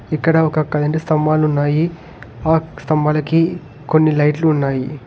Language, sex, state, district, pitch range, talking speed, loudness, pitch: Telugu, male, Telangana, Hyderabad, 145-160 Hz, 105 wpm, -17 LUFS, 155 Hz